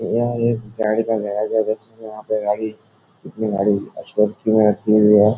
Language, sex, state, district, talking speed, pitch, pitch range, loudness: Hindi, male, Bihar, Jahanabad, 180 wpm, 110 Hz, 105-110 Hz, -19 LUFS